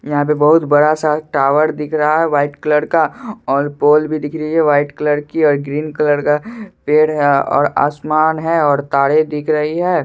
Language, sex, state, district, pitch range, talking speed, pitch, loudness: Hindi, male, Bihar, Supaul, 145-155 Hz, 205 wpm, 150 Hz, -15 LUFS